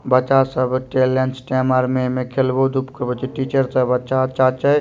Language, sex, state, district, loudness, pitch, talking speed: Maithili, male, Bihar, Supaul, -19 LUFS, 130 Hz, 185 wpm